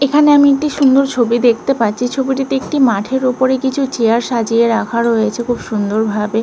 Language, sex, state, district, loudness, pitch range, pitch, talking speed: Bengali, female, West Bengal, Malda, -14 LUFS, 230-270 Hz, 245 Hz, 170 wpm